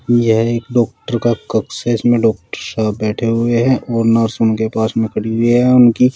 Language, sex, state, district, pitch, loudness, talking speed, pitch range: Hindi, male, Uttar Pradesh, Saharanpur, 115 Hz, -15 LUFS, 215 wpm, 110-120 Hz